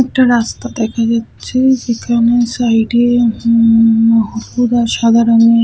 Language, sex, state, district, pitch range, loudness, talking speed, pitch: Bengali, female, West Bengal, Purulia, 230-240 Hz, -12 LUFS, 115 wpm, 230 Hz